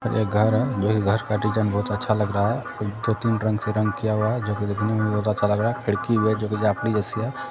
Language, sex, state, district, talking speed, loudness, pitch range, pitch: Hindi, male, Bihar, Saran, 255 wpm, -23 LUFS, 105-110 Hz, 105 Hz